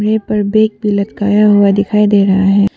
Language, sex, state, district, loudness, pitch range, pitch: Hindi, female, Arunachal Pradesh, Papum Pare, -12 LUFS, 200-210 Hz, 205 Hz